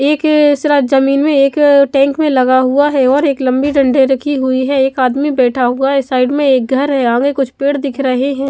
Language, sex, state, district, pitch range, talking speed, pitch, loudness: Hindi, female, Chandigarh, Chandigarh, 260-285 Hz, 240 wpm, 275 Hz, -12 LUFS